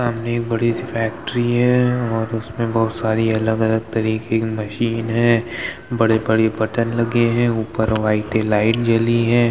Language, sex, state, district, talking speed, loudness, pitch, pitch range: Hindi, male, Uttar Pradesh, Hamirpur, 150 wpm, -19 LUFS, 115 Hz, 110-115 Hz